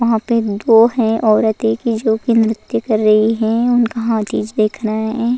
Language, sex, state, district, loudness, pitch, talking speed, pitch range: Hindi, female, Goa, North and South Goa, -15 LUFS, 225 Hz, 200 wpm, 220-230 Hz